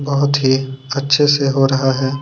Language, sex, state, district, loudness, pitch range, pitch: Hindi, male, Chhattisgarh, Kabirdham, -15 LUFS, 135-140 Hz, 135 Hz